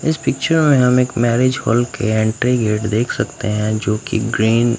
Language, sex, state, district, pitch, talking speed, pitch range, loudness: Hindi, male, Bihar, Katihar, 120 Hz, 215 wpm, 110-125 Hz, -17 LUFS